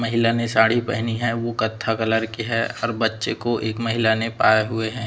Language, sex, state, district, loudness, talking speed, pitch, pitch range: Hindi, male, Chhattisgarh, Raipur, -21 LUFS, 225 wpm, 115 Hz, 110-115 Hz